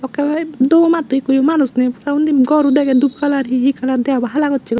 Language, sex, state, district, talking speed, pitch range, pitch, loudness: Chakma, female, Tripura, Unakoti, 250 wpm, 260-295 Hz, 275 Hz, -15 LUFS